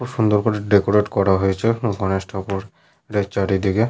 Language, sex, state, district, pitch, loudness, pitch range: Bengali, male, Jharkhand, Sahebganj, 100 Hz, -20 LUFS, 95-110 Hz